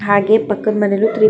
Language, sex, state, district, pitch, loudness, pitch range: Kannada, female, Karnataka, Chamarajanagar, 215 Hz, -15 LUFS, 205-220 Hz